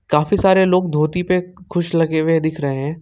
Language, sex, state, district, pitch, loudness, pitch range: Hindi, male, Jharkhand, Ranchi, 165 Hz, -17 LUFS, 155-180 Hz